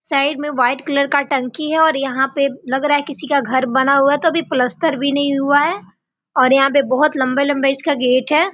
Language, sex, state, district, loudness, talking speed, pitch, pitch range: Hindi, female, Bihar, Gopalganj, -16 LUFS, 230 wpm, 280 Hz, 270-295 Hz